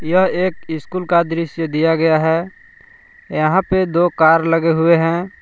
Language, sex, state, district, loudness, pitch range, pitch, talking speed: Hindi, male, Jharkhand, Palamu, -16 LUFS, 165-185 Hz, 170 Hz, 155 wpm